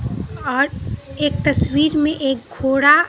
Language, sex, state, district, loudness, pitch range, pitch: Hindi, female, Bihar, Katihar, -18 LUFS, 270-305 Hz, 295 Hz